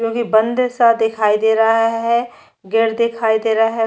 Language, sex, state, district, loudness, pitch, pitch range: Hindi, female, Chhattisgarh, Jashpur, -16 LUFS, 225 Hz, 220-235 Hz